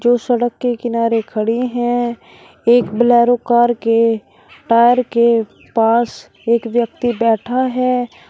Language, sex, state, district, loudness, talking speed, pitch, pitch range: Hindi, male, Uttar Pradesh, Shamli, -16 LUFS, 125 wpm, 235 Hz, 230-245 Hz